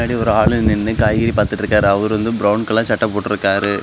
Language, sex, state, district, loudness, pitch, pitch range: Tamil, male, Tamil Nadu, Kanyakumari, -16 LUFS, 105 Hz, 105-110 Hz